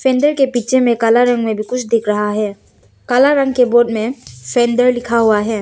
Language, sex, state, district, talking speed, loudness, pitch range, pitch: Hindi, female, Arunachal Pradesh, Papum Pare, 200 wpm, -14 LUFS, 215-250 Hz, 235 Hz